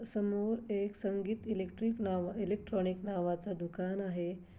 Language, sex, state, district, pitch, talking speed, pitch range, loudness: Marathi, female, Maharashtra, Aurangabad, 200 Hz, 115 wpm, 185-210 Hz, -37 LUFS